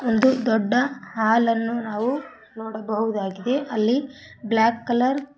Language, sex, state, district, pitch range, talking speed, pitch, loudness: Kannada, female, Karnataka, Koppal, 220-255 Hz, 110 wpm, 230 Hz, -22 LUFS